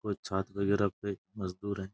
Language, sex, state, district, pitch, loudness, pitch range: Rajasthani, male, Rajasthan, Churu, 100 Hz, -34 LUFS, 95-100 Hz